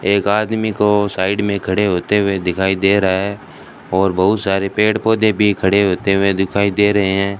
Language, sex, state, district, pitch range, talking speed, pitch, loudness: Hindi, male, Rajasthan, Bikaner, 95-105 Hz, 205 wpm, 100 Hz, -16 LUFS